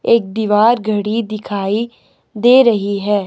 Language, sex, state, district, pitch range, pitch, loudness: Hindi, male, Himachal Pradesh, Shimla, 205-235 Hz, 215 Hz, -15 LUFS